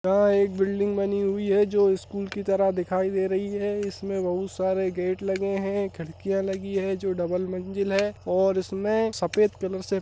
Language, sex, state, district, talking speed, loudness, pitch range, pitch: Hindi, male, Bihar, Saharsa, 205 wpm, -26 LUFS, 190-200 Hz, 195 Hz